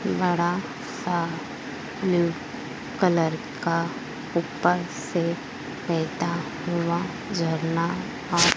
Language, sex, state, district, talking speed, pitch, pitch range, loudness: Hindi, female, Madhya Pradesh, Dhar, 75 wpm, 170 Hz, 165-175 Hz, -27 LUFS